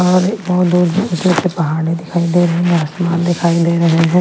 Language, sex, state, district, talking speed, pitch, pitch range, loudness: Hindi, female, Bihar, Patna, 200 wpm, 175 Hz, 170-180 Hz, -14 LUFS